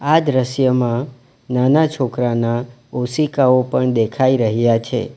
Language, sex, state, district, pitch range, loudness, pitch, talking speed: Gujarati, male, Gujarat, Valsad, 120-130 Hz, -17 LUFS, 125 Hz, 105 wpm